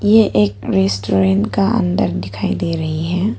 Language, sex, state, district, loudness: Hindi, female, Arunachal Pradesh, Papum Pare, -17 LUFS